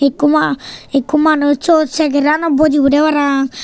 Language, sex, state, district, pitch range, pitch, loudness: Chakma, male, Tripura, Unakoti, 280-310 Hz, 295 Hz, -13 LUFS